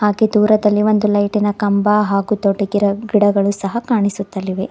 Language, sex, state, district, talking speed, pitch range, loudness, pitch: Kannada, female, Karnataka, Bidar, 140 wpm, 200-210 Hz, -16 LUFS, 205 Hz